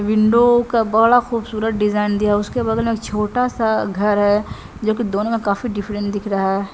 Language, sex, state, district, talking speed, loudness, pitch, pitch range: Maithili, female, Bihar, Samastipur, 205 wpm, -18 LUFS, 215 Hz, 205-230 Hz